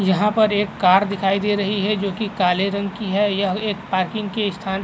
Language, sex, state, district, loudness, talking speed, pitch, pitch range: Hindi, male, Uttar Pradesh, Jalaun, -20 LUFS, 250 wpm, 200 Hz, 195-210 Hz